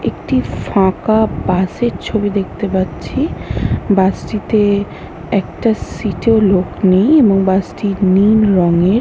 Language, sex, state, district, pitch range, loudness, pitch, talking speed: Bengali, male, West Bengal, North 24 Parganas, 185-215 Hz, -14 LUFS, 195 Hz, 120 wpm